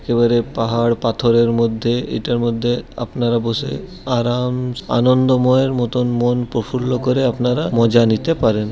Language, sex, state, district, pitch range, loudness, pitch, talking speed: Bengali, male, West Bengal, Purulia, 115-125 Hz, -17 LUFS, 120 Hz, 130 wpm